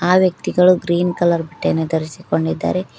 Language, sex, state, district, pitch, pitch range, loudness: Kannada, female, Karnataka, Koppal, 175 Hz, 155-180 Hz, -17 LUFS